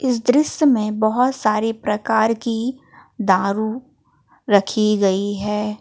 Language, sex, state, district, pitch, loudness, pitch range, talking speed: Hindi, female, Jharkhand, Palamu, 220 Hz, -19 LUFS, 210-245 Hz, 115 wpm